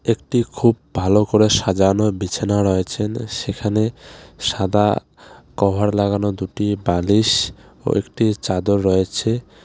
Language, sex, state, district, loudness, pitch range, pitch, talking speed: Bengali, male, West Bengal, Alipurduar, -19 LUFS, 95-110 Hz, 105 Hz, 105 wpm